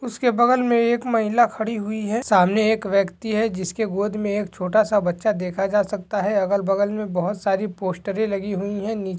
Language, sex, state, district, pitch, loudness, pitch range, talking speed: Hindi, male, Jharkhand, Jamtara, 205 Hz, -22 LUFS, 195-220 Hz, 215 wpm